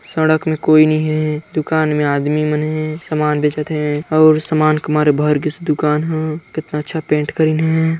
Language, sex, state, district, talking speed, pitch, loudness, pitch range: Chhattisgarhi, male, Chhattisgarh, Sarguja, 200 wpm, 155 Hz, -16 LUFS, 150-155 Hz